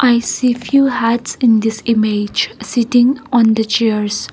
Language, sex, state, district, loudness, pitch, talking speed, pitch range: English, female, Nagaland, Kohima, -14 LUFS, 235 Hz, 150 wpm, 220-245 Hz